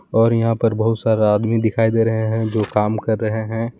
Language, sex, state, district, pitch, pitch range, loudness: Hindi, male, Jharkhand, Palamu, 110 Hz, 110-115 Hz, -18 LUFS